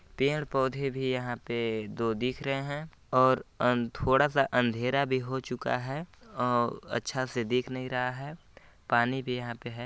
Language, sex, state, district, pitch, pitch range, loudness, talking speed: Hindi, male, Chhattisgarh, Balrampur, 130 Hz, 120-135 Hz, -30 LUFS, 175 wpm